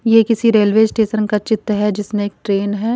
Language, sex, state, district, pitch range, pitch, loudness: Hindi, female, Punjab, Kapurthala, 205-225 Hz, 215 Hz, -16 LUFS